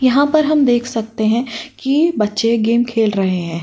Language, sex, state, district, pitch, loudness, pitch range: Hindi, female, Uttar Pradesh, Jyotiba Phule Nagar, 230 Hz, -16 LUFS, 215-270 Hz